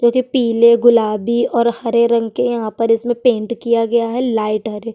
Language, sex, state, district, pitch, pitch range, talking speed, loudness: Hindi, female, Chhattisgarh, Sukma, 235 Hz, 230-240 Hz, 205 wpm, -15 LUFS